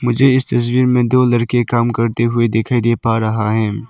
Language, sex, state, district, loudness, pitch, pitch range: Hindi, male, Arunachal Pradesh, Lower Dibang Valley, -15 LUFS, 120 Hz, 115-125 Hz